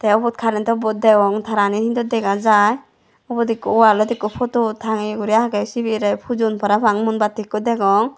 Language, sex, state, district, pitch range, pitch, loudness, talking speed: Chakma, female, Tripura, Dhalai, 210-230 Hz, 220 Hz, -18 LUFS, 170 wpm